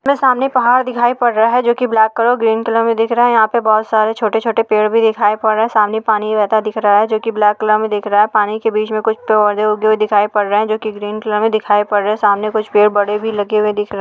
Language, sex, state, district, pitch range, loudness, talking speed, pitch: Hindi, female, Rajasthan, Churu, 210-225 Hz, -14 LUFS, 305 wpm, 215 Hz